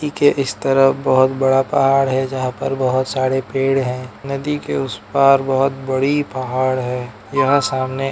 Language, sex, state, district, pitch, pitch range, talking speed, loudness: Hindi, male, Arunachal Pradesh, Lower Dibang Valley, 135 Hz, 130-135 Hz, 185 wpm, -17 LUFS